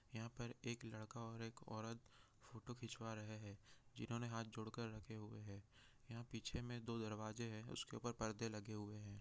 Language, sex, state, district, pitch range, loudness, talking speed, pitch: Hindi, male, Bihar, Jahanabad, 110-115 Hz, -51 LUFS, 210 wpm, 115 Hz